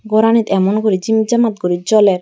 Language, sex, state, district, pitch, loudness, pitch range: Chakma, female, Tripura, Dhalai, 215 Hz, -14 LUFS, 195-220 Hz